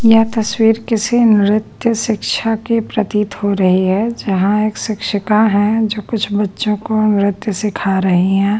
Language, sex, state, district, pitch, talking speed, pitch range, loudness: Hindi, female, Bihar, Patna, 210 Hz, 155 wpm, 200-225 Hz, -15 LUFS